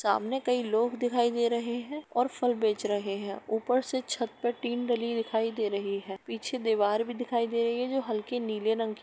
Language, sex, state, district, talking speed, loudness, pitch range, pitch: Hindi, female, Uttar Pradesh, Etah, 220 wpm, -30 LUFS, 215-245 Hz, 235 Hz